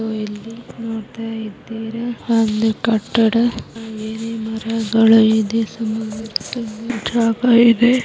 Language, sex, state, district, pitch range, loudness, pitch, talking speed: Kannada, female, Karnataka, Bijapur, 220-230 Hz, -18 LUFS, 225 Hz, 95 wpm